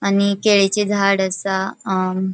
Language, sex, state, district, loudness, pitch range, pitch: Konkani, female, Goa, North and South Goa, -18 LUFS, 190-200 Hz, 195 Hz